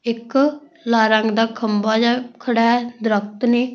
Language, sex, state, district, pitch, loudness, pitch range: Punjabi, female, Punjab, Fazilka, 230 Hz, -18 LUFS, 220-245 Hz